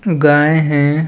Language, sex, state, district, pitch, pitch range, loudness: Chhattisgarhi, male, Chhattisgarh, Balrampur, 150 Hz, 145-160 Hz, -12 LUFS